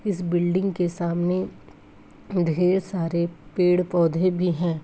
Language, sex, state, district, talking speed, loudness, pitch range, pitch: Hindi, female, Bihar, Saran, 125 wpm, -23 LUFS, 170-185 Hz, 175 Hz